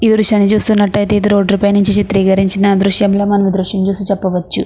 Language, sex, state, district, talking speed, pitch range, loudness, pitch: Telugu, female, Andhra Pradesh, Anantapur, 195 wpm, 195-205 Hz, -12 LUFS, 200 Hz